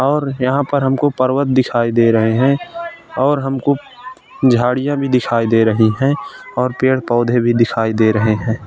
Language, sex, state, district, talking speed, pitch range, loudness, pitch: Hindi, male, Uttar Pradesh, Ghazipur, 175 wpm, 115-140 Hz, -15 LUFS, 130 Hz